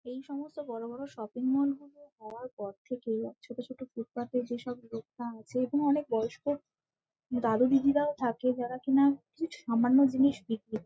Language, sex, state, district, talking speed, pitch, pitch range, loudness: Bengali, female, West Bengal, Malda, 165 wpm, 250 Hz, 230-280 Hz, -31 LUFS